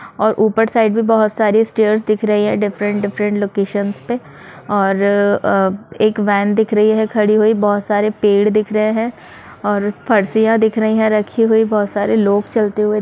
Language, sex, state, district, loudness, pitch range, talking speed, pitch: Hindi, female, Bihar, Saran, -15 LUFS, 205-220 Hz, 185 wpm, 215 Hz